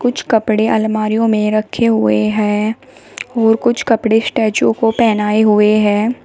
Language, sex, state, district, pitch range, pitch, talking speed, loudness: Hindi, female, Uttar Pradesh, Shamli, 215-230 Hz, 220 Hz, 145 wpm, -14 LUFS